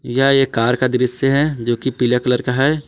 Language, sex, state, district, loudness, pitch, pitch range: Hindi, male, Jharkhand, Palamu, -17 LUFS, 125 Hz, 125-135 Hz